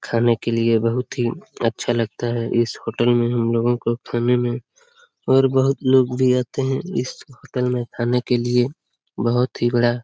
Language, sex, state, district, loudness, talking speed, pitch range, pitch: Hindi, male, Bihar, Lakhisarai, -20 LUFS, 190 wpm, 120-130 Hz, 120 Hz